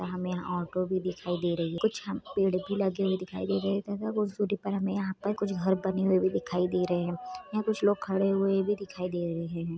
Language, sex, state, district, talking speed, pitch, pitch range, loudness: Hindi, female, Chhattisgarh, Raigarh, 240 wpm, 190 Hz, 180-200 Hz, -30 LUFS